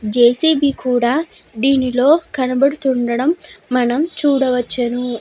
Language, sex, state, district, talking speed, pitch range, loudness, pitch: Telugu, female, Andhra Pradesh, Guntur, 80 wpm, 245-290 Hz, -16 LUFS, 260 Hz